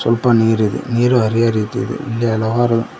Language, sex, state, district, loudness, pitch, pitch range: Kannada, male, Karnataka, Koppal, -16 LUFS, 115 Hz, 110-120 Hz